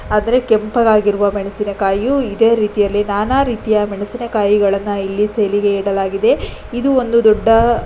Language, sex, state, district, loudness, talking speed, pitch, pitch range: Kannada, female, Karnataka, Dakshina Kannada, -15 LUFS, 120 wpm, 210 Hz, 205-230 Hz